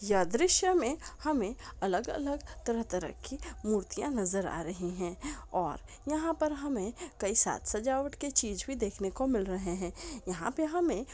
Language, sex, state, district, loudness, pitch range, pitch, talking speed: Hindi, female, Andhra Pradesh, Chittoor, -33 LUFS, 195-300 Hz, 240 Hz, 155 wpm